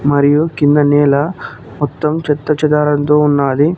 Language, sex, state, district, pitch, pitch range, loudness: Telugu, male, Telangana, Mahabubabad, 150 Hz, 145-150 Hz, -13 LUFS